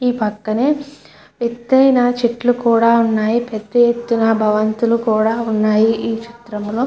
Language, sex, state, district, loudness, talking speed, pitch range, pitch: Telugu, female, Andhra Pradesh, Guntur, -16 LUFS, 115 wpm, 220-240 Hz, 230 Hz